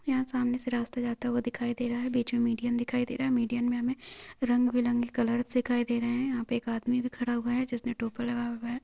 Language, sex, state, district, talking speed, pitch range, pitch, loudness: Hindi, female, Chhattisgarh, Raigarh, 270 wpm, 240-245 Hz, 240 Hz, -30 LUFS